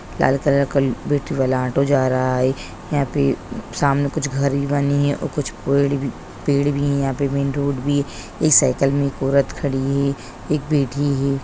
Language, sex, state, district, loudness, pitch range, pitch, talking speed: Hindi, female, Bihar, Sitamarhi, -20 LUFS, 135-140 Hz, 140 Hz, 200 wpm